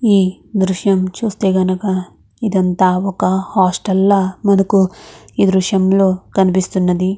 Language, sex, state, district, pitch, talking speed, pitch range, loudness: Telugu, female, Andhra Pradesh, Krishna, 190 Hz, 150 wpm, 185-195 Hz, -15 LUFS